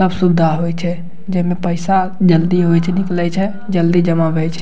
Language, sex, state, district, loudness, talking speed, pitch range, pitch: Maithili, male, Bihar, Madhepura, -15 LUFS, 220 wpm, 170-185 Hz, 175 Hz